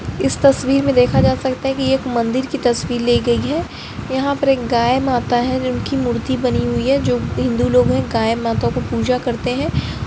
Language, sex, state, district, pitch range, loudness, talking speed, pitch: Hindi, female, Bihar, Lakhisarai, 230-265 Hz, -17 LUFS, 220 wpm, 245 Hz